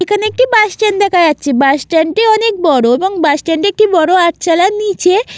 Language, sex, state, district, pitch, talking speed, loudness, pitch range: Bengali, female, West Bengal, Jalpaiguri, 365 Hz, 235 wpm, -11 LUFS, 320-420 Hz